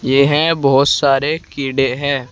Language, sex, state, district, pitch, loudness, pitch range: Hindi, male, Uttar Pradesh, Saharanpur, 140 Hz, -15 LUFS, 135-145 Hz